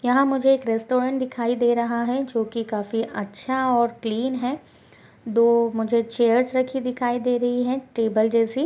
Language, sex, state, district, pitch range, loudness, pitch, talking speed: Hindi, female, Maharashtra, Pune, 230-255 Hz, -22 LUFS, 240 Hz, 175 wpm